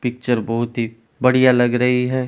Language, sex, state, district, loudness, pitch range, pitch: Hindi, male, Rajasthan, Churu, -18 LUFS, 120-125 Hz, 125 Hz